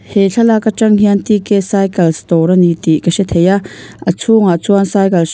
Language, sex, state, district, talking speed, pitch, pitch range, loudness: Mizo, female, Mizoram, Aizawl, 205 wpm, 195 Hz, 175-210 Hz, -12 LUFS